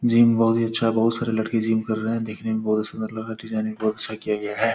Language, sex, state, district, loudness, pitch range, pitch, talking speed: Hindi, male, Bihar, Purnia, -23 LUFS, 110-115 Hz, 110 Hz, 325 wpm